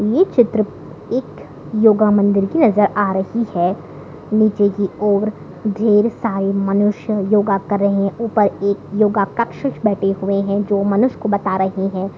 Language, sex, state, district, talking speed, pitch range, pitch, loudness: Hindi, female, Chhattisgarh, Jashpur, 155 wpm, 195-215 Hz, 205 Hz, -17 LUFS